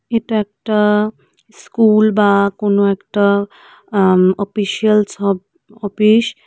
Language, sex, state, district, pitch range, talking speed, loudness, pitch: Bengali, female, West Bengal, Cooch Behar, 200-215 Hz, 100 wpm, -15 LUFS, 210 Hz